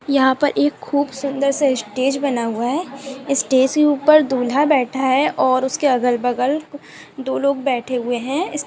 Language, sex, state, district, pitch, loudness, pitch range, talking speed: Hindi, female, Andhra Pradesh, Anantapur, 270 Hz, -18 LUFS, 255-285 Hz, 175 wpm